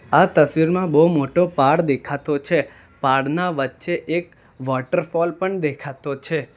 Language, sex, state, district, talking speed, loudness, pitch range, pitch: Gujarati, male, Gujarat, Valsad, 130 wpm, -20 LUFS, 140-170 Hz, 150 Hz